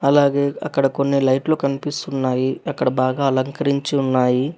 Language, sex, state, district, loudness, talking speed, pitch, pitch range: Telugu, male, Telangana, Hyderabad, -19 LUFS, 120 wpm, 140 Hz, 130-140 Hz